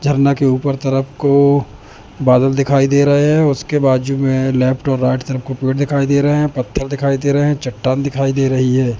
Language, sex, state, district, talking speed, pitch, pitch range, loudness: Hindi, male, Madhya Pradesh, Katni, 220 wpm, 135 Hz, 130-140 Hz, -15 LUFS